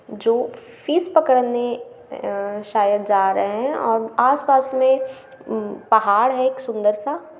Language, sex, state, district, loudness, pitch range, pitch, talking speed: Hindi, female, Bihar, Gaya, -19 LUFS, 210-265 Hz, 245 Hz, 120 wpm